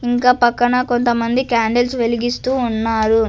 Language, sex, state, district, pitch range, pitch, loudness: Telugu, female, Andhra Pradesh, Sri Satya Sai, 230-245 Hz, 240 Hz, -17 LUFS